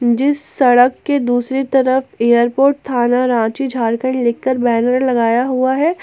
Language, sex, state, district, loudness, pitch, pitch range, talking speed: Hindi, female, Jharkhand, Ranchi, -15 LUFS, 255 Hz, 240-270 Hz, 140 wpm